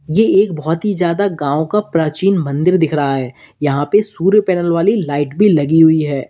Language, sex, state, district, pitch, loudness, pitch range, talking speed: Hindi, male, Uttar Pradesh, Lalitpur, 165 Hz, -14 LUFS, 145-195 Hz, 210 wpm